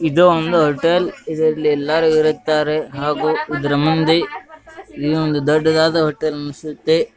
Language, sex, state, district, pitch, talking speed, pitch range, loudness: Kannada, male, Karnataka, Gulbarga, 155 Hz, 125 wpm, 150-165 Hz, -17 LUFS